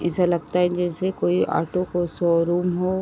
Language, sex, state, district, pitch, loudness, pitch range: Hindi, female, Uttar Pradesh, Ghazipur, 175 Hz, -22 LUFS, 170-180 Hz